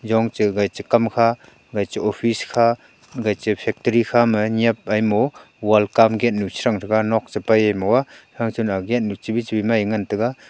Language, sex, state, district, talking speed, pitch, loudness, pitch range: Wancho, male, Arunachal Pradesh, Longding, 205 wpm, 110 Hz, -20 LUFS, 105-115 Hz